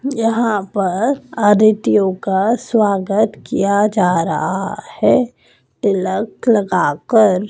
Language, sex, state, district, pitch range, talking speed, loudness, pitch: Hindi, male, Madhya Pradesh, Dhar, 190-225 Hz, 95 wpm, -16 LUFS, 205 Hz